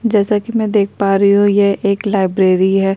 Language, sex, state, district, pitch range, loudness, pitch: Hindi, female, Uttar Pradesh, Jyotiba Phule Nagar, 195-205 Hz, -14 LUFS, 200 Hz